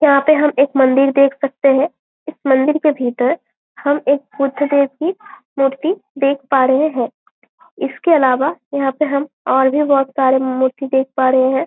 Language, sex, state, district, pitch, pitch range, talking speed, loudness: Hindi, female, Chhattisgarh, Bastar, 275 Hz, 265-295 Hz, 160 wpm, -16 LUFS